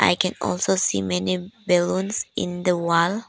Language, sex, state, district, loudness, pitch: English, female, Arunachal Pradesh, Papum Pare, -22 LUFS, 175 Hz